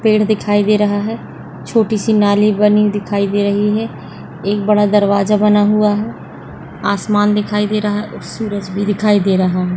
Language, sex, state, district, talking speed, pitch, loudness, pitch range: Hindi, female, Rajasthan, Nagaur, 190 wpm, 210 Hz, -15 LUFS, 205-210 Hz